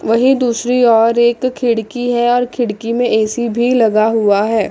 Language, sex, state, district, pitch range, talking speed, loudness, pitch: Hindi, female, Chandigarh, Chandigarh, 225-245 Hz, 180 wpm, -14 LUFS, 235 Hz